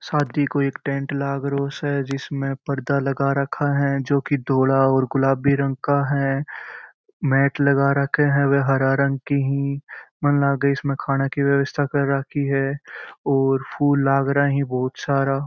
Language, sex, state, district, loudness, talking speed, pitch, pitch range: Marwari, male, Rajasthan, Churu, -21 LUFS, 180 wpm, 140 Hz, 135-140 Hz